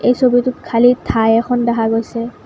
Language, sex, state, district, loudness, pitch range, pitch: Assamese, female, Assam, Kamrup Metropolitan, -15 LUFS, 225-245 Hz, 235 Hz